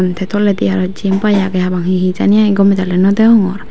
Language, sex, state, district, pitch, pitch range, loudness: Chakma, female, Tripura, Dhalai, 195 Hz, 185-205 Hz, -12 LUFS